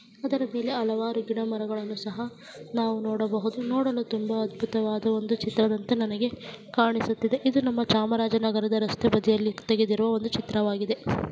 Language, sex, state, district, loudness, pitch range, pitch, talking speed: Kannada, female, Karnataka, Chamarajanagar, -27 LUFS, 220-230 Hz, 225 Hz, 110 wpm